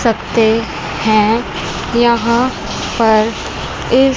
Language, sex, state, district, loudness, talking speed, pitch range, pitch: Hindi, female, Chandigarh, Chandigarh, -15 LUFS, 70 wpm, 220-240 Hz, 230 Hz